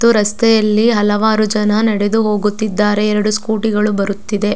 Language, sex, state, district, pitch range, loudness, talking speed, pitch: Kannada, female, Karnataka, Dakshina Kannada, 210-220 Hz, -14 LUFS, 120 wpm, 210 Hz